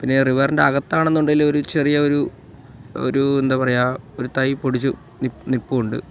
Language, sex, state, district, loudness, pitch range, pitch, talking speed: Malayalam, male, Kerala, Kollam, -19 LUFS, 130-145 Hz, 135 Hz, 145 wpm